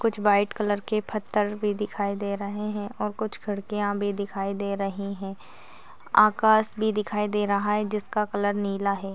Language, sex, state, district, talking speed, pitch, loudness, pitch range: Hindi, female, Maharashtra, Dhule, 175 wpm, 205 Hz, -26 LUFS, 200-210 Hz